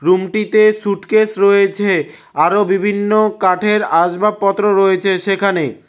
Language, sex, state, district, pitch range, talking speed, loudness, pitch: Bengali, male, West Bengal, Cooch Behar, 195-210 Hz, 90 wpm, -14 LUFS, 200 Hz